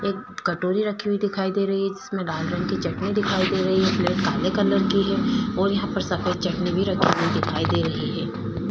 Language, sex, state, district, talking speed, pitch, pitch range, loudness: Hindi, female, Bihar, Vaishali, 235 wpm, 195 Hz, 185-205 Hz, -23 LUFS